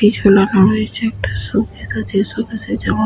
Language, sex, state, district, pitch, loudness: Bengali, female, West Bengal, Jhargram, 190 Hz, -16 LUFS